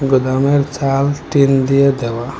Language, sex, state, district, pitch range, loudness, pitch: Bengali, male, Assam, Hailakandi, 130-140 Hz, -15 LUFS, 135 Hz